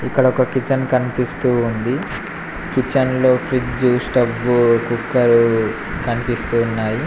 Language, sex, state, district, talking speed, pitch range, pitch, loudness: Telugu, male, Telangana, Mahabubabad, 100 wpm, 115-130 Hz, 125 Hz, -18 LUFS